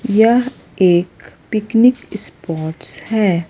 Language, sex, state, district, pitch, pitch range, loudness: Hindi, female, Chhattisgarh, Raipur, 210 Hz, 170-225 Hz, -16 LUFS